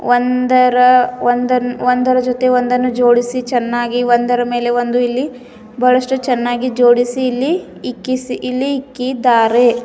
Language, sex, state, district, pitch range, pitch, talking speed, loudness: Kannada, female, Karnataka, Bidar, 245-255 Hz, 250 Hz, 110 wpm, -14 LUFS